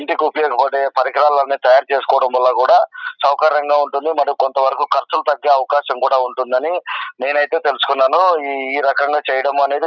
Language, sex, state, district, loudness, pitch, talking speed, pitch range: Telugu, male, Andhra Pradesh, Anantapur, -16 LUFS, 140 Hz, 145 wpm, 135-150 Hz